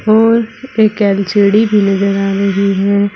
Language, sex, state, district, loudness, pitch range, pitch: Hindi, female, Uttar Pradesh, Saharanpur, -12 LUFS, 200-215 Hz, 200 Hz